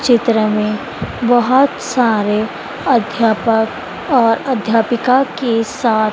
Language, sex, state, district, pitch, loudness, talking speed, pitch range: Hindi, female, Madhya Pradesh, Dhar, 230 Hz, -15 LUFS, 90 wpm, 220-250 Hz